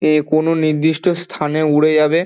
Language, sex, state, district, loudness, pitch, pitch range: Bengali, male, West Bengal, Dakshin Dinajpur, -16 LUFS, 155 Hz, 155-160 Hz